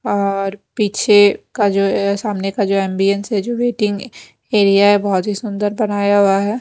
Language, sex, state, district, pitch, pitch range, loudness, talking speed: Hindi, female, Bihar, West Champaran, 205 Hz, 195-210 Hz, -16 LUFS, 170 wpm